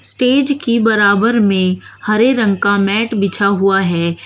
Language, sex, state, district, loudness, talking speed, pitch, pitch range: Hindi, female, Uttar Pradesh, Shamli, -13 LUFS, 155 wpm, 205 Hz, 195-230 Hz